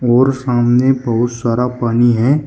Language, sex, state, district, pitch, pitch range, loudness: Hindi, male, Uttar Pradesh, Shamli, 120 Hz, 120-130 Hz, -14 LUFS